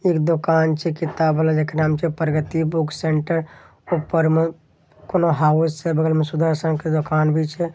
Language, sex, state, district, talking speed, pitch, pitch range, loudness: Angika, male, Bihar, Begusarai, 180 wpm, 160 Hz, 155-165 Hz, -20 LUFS